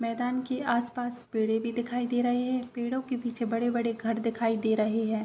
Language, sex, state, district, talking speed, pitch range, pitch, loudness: Hindi, female, Uttar Pradesh, Gorakhpur, 205 wpm, 230-245 Hz, 240 Hz, -29 LUFS